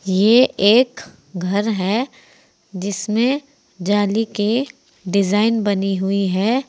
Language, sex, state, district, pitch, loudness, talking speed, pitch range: Hindi, female, Uttar Pradesh, Saharanpur, 205 Hz, -18 LUFS, 100 wpm, 195-235 Hz